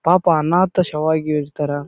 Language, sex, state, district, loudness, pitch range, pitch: Kannada, male, Karnataka, Bijapur, -18 LUFS, 150-180 Hz, 155 Hz